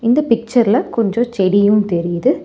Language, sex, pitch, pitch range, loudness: Tamil, female, 230 Hz, 200-240 Hz, -15 LUFS